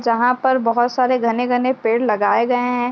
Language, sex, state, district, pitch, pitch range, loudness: Hindi, female, Uttar Pradesh, Jyotiba Phule Nagar, 245 Hz, 230-250 Hz, -17 LUFS